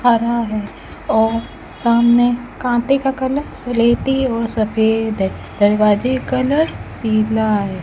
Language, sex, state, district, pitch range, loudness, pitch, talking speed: Hindi, female, Rajasthan, Bikaner, 220-255 Hz, -17 LUFS, 235 Hz, 115 wpm